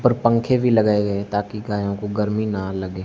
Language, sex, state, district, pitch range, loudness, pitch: Hindi, male, Rajasthan, Barmer, 100-110 Hz, -21 LUFS, 105 Hz